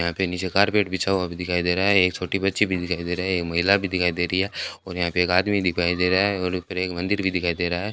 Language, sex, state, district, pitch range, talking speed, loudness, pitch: Hindi, male, Rajasthan, Bikaner, 90-95 Hz, 355 wpm, -22 LUFS, 90 Hz